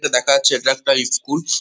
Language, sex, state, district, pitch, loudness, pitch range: Bengali, male, West Bengal, Kolkata, 135 Hz, -16 LUFS, 130-140 Hz